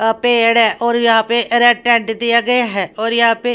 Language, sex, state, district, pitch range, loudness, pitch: Hindi, female, Haryana, Rohtak, 225-240 Hz, -13 LUFS, 235 Hz